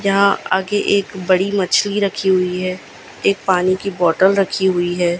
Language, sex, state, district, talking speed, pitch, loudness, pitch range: Hindi, female, Gujarat, Gandhinagar, 175 wpm, 190 Hz, -17 LUFS, 185-200 Hz